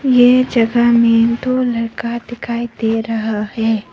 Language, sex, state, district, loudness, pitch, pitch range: Hindi, female, Arunachal Pradesh, Papum Pare, -15 LUFS, 235 Hz, 225-240 Hz